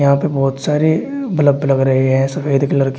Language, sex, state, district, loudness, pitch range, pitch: Hindi, male, Uttar Pradesh, Shamli, -15 LUFS, 135-150 Hz, 140 Hz